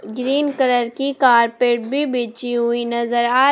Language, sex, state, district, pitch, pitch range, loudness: Hindi, female, Jharkhand, Palamu, 245 Hz, 235-265 Hz, -18 LUFS